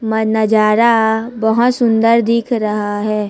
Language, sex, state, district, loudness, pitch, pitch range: Hindi, female, Chhattisgarh, Raipur, -14 LUFS, 220 Hz, 215-230 Hz